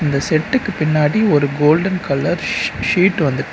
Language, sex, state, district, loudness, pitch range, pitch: Tamil, male, Tamil Nadu, Nilgiris, -16 LUFS, 145-190 Hz, 155 Hz